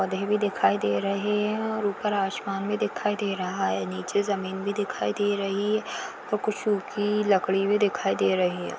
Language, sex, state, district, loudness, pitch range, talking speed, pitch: Hindi, female, Chhattisgarh, Rajnandgaon, -26 LUFS, 190-210 Hz, 205 wpm, 200 Hz